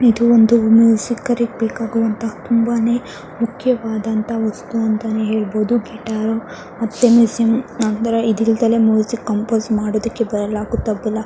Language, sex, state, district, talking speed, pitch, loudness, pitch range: Kannada, male, Karnataka, Mysore, 100 wpm, 225 Hz, -17 LUFS, 220-230 Hz